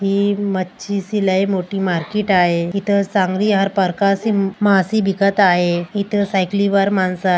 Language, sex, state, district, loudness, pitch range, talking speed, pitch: Marathi, female, Maharashtra, Aurangabad, -17 LUFS, 185-200 Hz, 155 wpm, 195 Hz